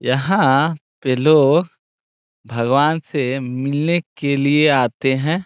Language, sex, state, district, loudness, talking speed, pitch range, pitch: Hindi, male, Bihar, Saran, -17 LUFS, 120 wpm, 130-155 Hz, 140 Hz